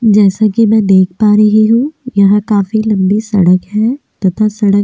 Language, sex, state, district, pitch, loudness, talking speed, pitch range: Hindi, female, Delhi, New Delhi, 210 Hz, -11 LUFS, 175 wpm, 200-220 Hz